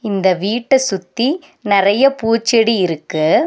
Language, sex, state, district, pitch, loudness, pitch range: Tamil, female, Tamil Nadu, Nilgiris, 220 Hz, -15 LUFS, 190-250 Hz